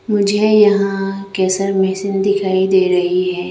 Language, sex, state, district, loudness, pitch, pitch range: Hindi, female, Arunachal Pradesh, Lower Dibang Valley, -15 LUFS, 195 Hz, 185-200 Hz